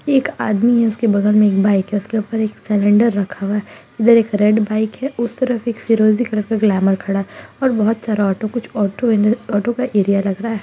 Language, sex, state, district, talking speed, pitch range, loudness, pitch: Hindi, female, Bihar, Muzaffarpur, 240 wpm, 205-230 Hz, -17 LUFS, 215 Hz